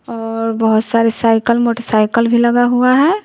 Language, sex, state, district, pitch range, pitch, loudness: Hindi, female, Bihar, West Champaran, 225-240 Hz, 230 Hz, -14 LUFS